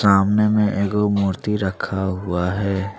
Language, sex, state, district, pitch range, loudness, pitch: Hindi, male, Jharkhand, Deoghar, 95-105 Hz, -20 LUFS, 100 Hz